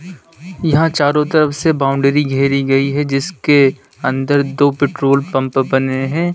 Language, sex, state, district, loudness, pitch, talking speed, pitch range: Hindi, male, Uttar Pradesh, Lalitpur, -15 LUFS, 140 Hz, 140 wpm, 135-155 Hz